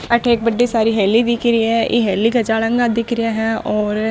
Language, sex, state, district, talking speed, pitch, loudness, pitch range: Marwari, female, Rajasthan, Nagaur, 250 wpm, 230 Hz, -16 LUFS, 220-235 Hz